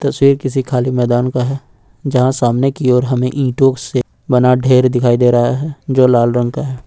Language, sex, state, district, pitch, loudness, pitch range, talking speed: Hindi, male, Jharkhand, Ranchi, 125 Hz, -14 LUFS, 125-135 Hz, 200 wpm